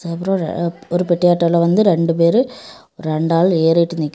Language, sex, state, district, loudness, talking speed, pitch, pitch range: Tamil, female, Tamil Nadu, Kanyakumari, -16 LUFS, 130 wpm, 170 Hz, 165-180 Hz